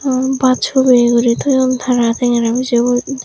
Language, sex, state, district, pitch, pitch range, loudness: Chakma, female, Tripura, Dhalai, 250 Hz, 240-260 Hz, -13 LUFS